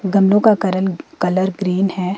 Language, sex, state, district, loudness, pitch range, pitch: Hindi, female, Himachal Pradesh, Shimla, -17 LUFS, 185-195 Hz, 190 Hz